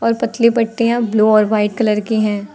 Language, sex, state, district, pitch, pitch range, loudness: Hindi, female, Uttar Pradesh, Lucknow, 215 Hz, 210-230 Hz, -15 LUFS